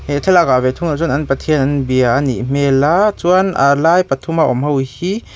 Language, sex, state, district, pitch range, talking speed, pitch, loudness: Mizo, male, Mizoram, Aizawl, 135-175 Hz, 225 wpm, 145 Hz, -14 LUFS